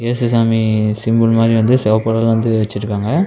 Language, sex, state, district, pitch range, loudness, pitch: Tamil, male, Tamil Nadu, Namakkal, 110-115 Hz, -14 LUFS, 115 Hz